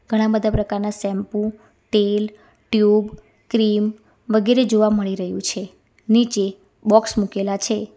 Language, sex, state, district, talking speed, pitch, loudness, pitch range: Gujarati, female, Gujarat, Valsad, 120 wpm, 210 Hz, -20 LUFS, 205-220 Hz